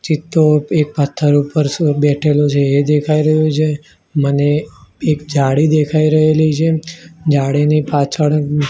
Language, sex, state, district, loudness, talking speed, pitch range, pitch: Gujarati, male, Gujarat, Gandhinagar, -14 LUFS, 125 wpm, 145-155 Hz, 150 Hz